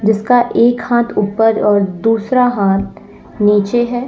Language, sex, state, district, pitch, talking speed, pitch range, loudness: Hindi, female, Uttar Pradesh, Lalitpur, 225 Hz, 130 wpm, 205-240 Hz, -13 LUFS